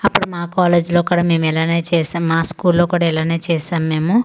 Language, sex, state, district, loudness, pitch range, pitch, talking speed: Telugu, female, Andhra Pradesh, Manyam, -17 LUFS, 165-175 Hz, 170 Hz, 210 wpm